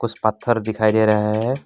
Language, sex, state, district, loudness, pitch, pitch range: Hindi, male, Assam, Kamrup Metropolitan, -19 LUFS, 110 Hz, 110-120 Hz